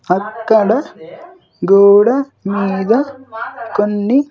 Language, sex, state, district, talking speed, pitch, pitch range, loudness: Telugu, male, Andhra Pradesh, Sri Satya Sai, 55 wpm, 225 Hz, 205-265 Hz, -14 LUFS